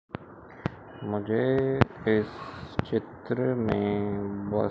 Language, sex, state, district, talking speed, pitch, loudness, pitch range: Hindi, male, Madhya Pradesh, Umaria, 65 wpm, 110 Hz, -29 LUFS, 105-125 Hz